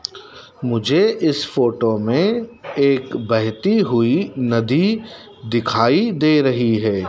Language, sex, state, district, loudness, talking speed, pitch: Hindi, male, Madhya Pradesh, Dhar, -18 LUFS, 100 wpm, 135 Hz